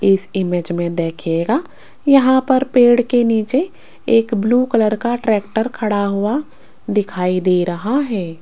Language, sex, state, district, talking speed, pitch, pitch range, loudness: Hindi, female, Rajasthan, Jaipur, 145 wpm, 215 Hz, 185-245 Hz, -17 LUFS